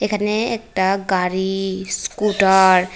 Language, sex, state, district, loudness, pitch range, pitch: Bengali, female, Tripura, West Tripura, -18 LUFS, 190-210 Hz, 190 Hz